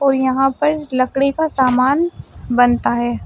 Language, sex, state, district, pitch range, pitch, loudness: Hindi, female, Uttar Pradesh, Shamli, 245-280 Hz, 265 Hz, -16 LUFS